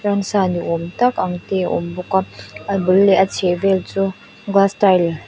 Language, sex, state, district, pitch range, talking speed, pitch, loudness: Mizo, female, Mizoram, Aizawl, 180-195 Hz, 215 wpm, 190 Hz, -17 LUFS